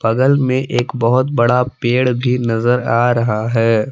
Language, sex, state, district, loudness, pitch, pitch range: Hindi, male, Jharkhand, Palamu, -15 LUFS, 120 Hz, 115-130 Hz